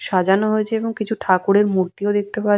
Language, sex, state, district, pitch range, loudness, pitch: Bengali, female, West Bengal, Purulia, 195-215 Hz, -19 LUFS, 205 Hz